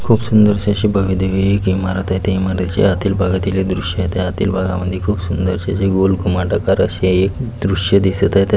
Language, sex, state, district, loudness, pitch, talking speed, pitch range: Marathi, male, Maharashtra, Pune, -16 LUFS, 95 Hz, 210 wpm, 95-100 Hz